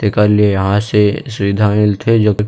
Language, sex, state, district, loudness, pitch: Chhattisgarhi, male, Chhattisgarh, Rajnandgaon, -13 LUFS, 105 Hz